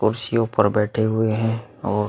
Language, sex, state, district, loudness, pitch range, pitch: Hindi, male, Bihar, Vaishali, -21 LUFS, 105-115 Hz, 110 Hz